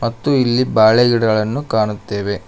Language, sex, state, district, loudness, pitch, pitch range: Kannada, male, Karnataka, Koppal, -15 LUFS, 115 Hz, 105-120 Hz